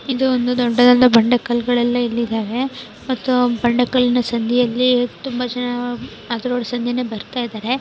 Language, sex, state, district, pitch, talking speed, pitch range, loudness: Kannada, female, Karnataka, Dharwad, 245 Hz, 130 wpm, 240-250 Hz, -18 LUFS